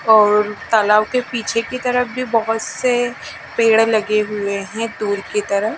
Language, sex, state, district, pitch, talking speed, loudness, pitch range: Hindi, female, Bihar, Katihar, 225 Hz, 165 wpm, -17 LUFS, 210-230 Hz